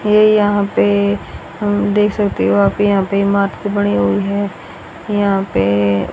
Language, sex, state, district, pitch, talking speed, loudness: Hindi, female, Haryana, Rohtak, 200 Hz, 135 wpm, -15 LUFS